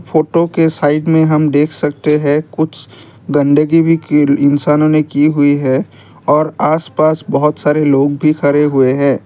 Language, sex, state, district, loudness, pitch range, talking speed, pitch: Hindi, male, Assam, Kamrup Metropolitan, -12 LUFS, 145-155 Hz, 150 wpm, 150 Hz